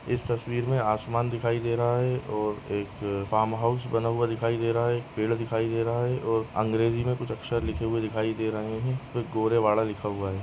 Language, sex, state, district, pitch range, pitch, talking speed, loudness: Hindi, male, Maharashtra, Nagpur, 110-120 Hz, 115 Hz, 225 wpm, -28 LUFS